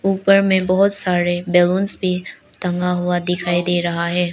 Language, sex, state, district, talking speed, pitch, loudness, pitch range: Hindi, female, Arunachal Pradesh, Lower Dibang Valley, 165 wpm, 180 Hz, -18 LUFS, 175-190 Hz